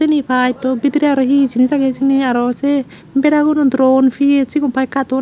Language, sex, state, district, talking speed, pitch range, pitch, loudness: Chakma, female, Tripura, Unakoti, 205 wpm, 260-280 Hz, 270 Hz, -14 LUFS